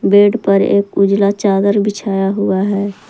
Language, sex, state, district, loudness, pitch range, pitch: Hindi, female, Jharkhand, Palamu, -14 LUFS, 195-205 Hz, 200 Hz